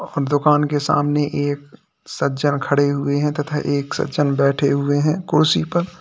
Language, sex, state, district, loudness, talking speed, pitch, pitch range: Hindi, male, Uttar Pradesh, Lalitpur, -19 LUFS, 170 wpm, 145 Hz, 140-150 Hz